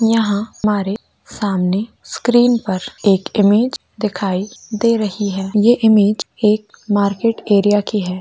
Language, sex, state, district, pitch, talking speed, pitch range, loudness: Hindi, male, Rajasthan, Churu, 210 Hz, 125 wpm, 200-225 Hz, -16 LUFS